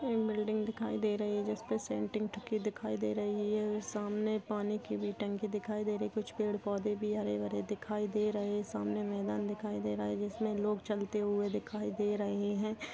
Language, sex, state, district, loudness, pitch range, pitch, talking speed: Hindi, female, Maharashtra, Pune, -36 LUFS, 205-215 Hz, 210 Hz, 195 wpm